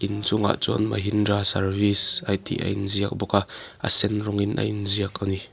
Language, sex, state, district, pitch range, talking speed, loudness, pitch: Mizo, male, Mizoram, Aizawl, 100-105 Hz, 185 wpm, -20 LUFS, 100 Hz